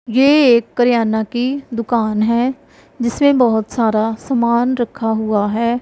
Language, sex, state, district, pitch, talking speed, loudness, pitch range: Hindi, female, Punjab, Pathankot, 235 Hz, 135 wpm, -16 LUFS, 225-250 Hz